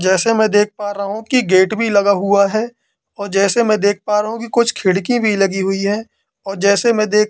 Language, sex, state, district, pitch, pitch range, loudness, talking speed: Hindi, male, Madhya Pradesh, Katni, 205 Hz, 200-225 Hz, -15 LUFS, 245 wpm